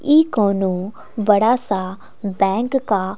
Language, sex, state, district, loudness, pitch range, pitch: Hindi, female, Bihar, West Champaran, -18 LUFS, 195-250 Hz, 205 Hz